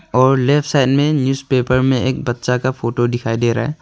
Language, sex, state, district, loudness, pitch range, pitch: Hindi, male, Arunachal Pradesh, Longding, -16 LUFS, 120-135 Hz, 130 Hz